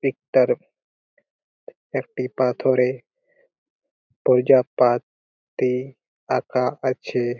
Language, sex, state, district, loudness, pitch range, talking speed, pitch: Bengali, male, West Bengal, Purulia, -21 LUFS, 125-135 Hz, 65 wpm, 130 Hz